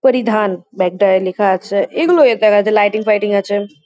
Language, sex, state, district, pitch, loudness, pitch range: Bengali, female, West Bengal, Kolkata, 205 Hz, -14 LUFS, 195-215 Hz